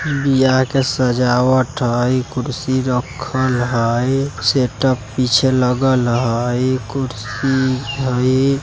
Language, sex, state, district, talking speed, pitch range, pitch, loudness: Bajjika, male, Bihar, Vaishali, 95 wpm, 125-130 Hz, 130 Hz, -17 LUFS